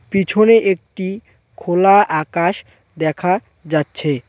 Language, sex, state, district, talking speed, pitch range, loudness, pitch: Bengali, male, West Bengal, Cooch Behar, 85 wpm, 155-195 Hz, -16 LUFS, 185 Hz